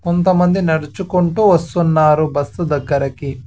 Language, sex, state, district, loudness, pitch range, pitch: Telugu, male, Andhra Pradesh, Sri Satya Sai, -15 LUFS, 145-180 Hz, 165 Hz